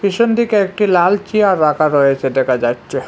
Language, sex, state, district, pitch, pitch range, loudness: Bengali, male, Assam, Hailakandi, 180 Hz, 135-205 Hz, -14 LUFS